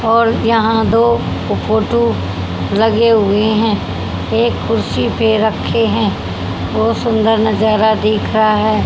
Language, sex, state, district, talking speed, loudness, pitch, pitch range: Hindi, female, Haryana, Jhajjar, 120 wpm, -14 LUFS, 220 Hz, 215-225 Hz